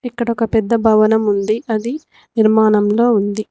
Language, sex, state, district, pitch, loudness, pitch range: Telugu, female, Telangana, Mahabubabad, 220 Hz, -15 LUFS, 215-230 Hz